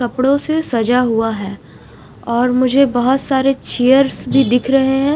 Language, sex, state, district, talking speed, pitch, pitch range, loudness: Hindi, female, Punjab, Fazilka, 165 wpm, 255 Hz, 240-270 Hz, -15 LUFS